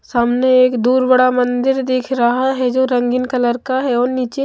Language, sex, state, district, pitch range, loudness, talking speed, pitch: Hindi, female, Maharashtra, Mumbai Suburban, 245-260 Hz, -15 LUFS, 190 wpm, 255 Hz